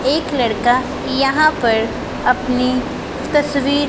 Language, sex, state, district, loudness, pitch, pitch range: Hindi, female, Punjab, Pathankot, -17 LUFS, 265 Hz, 250-285 Hz